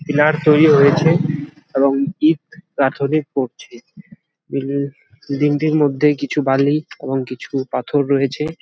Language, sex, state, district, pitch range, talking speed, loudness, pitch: Bengali, male, West Bengal, Jalpaiguri, 140-155 Hz, 120 wpm, -17 LUFS, 145 Hz